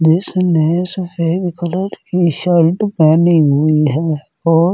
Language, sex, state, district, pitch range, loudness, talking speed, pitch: Hindi, male, Delhi, New Delhi, 160-180 Hz, -14 LUFS, 125 wpm, 170 Hz